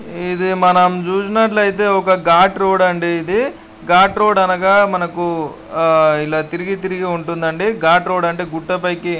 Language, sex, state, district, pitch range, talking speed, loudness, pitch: Telugu, male, Andhra Pradesh, Guntur, 170-190 Hz, 145 wpm, -15 LUFS, 180 Hz